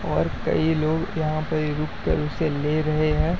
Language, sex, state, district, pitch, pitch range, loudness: Hindi, male, Uttar Pradesh, Jyotiba Phule Nagar, 155 Hz, 150-160 Hz, -24 LUFS